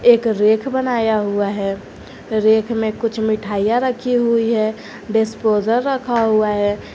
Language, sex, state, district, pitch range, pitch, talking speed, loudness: Hindi, female, Jharkhand, Garhwa, 215-235 Hz, 220 Hz, 140 wpm, -18 LUFS